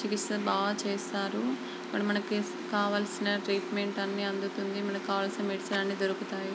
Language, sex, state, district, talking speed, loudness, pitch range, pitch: Telugu, female, Andhra Pradesh, Guntur, 130 wpm, -32 LUFS, 195-205 Hz, 200 Hz